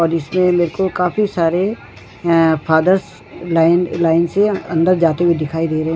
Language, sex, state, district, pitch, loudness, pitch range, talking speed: Hindi, female, Uttarakhand, Tehri Garhwal, 170 Hz, -16 LUFS, 160-180 Hz, 160 wpm